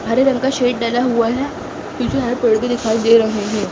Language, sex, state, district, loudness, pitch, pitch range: Hindi, female, Chhattisgarh, Balrampur, -17 LUFS, 235 Hz, 225-250 Hz